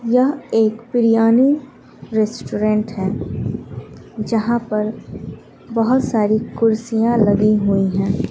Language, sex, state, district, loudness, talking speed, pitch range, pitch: Hindi, female, Bihar, West Champaran, -18 LUFS, 95 wpm, 215-235 Hz, 225 Hz